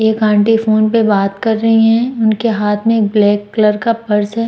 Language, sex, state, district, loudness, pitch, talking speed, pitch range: Hindi, female, Uttar Pradesh, Muzaffarnagar, -13 LUFS, 220 Hz, 230 wpm, 210-225 Hz